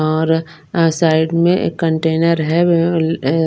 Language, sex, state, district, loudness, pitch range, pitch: Hindi, female, Bihar, Patna, -15 LUFS, 160-170 Hz, 165 Hz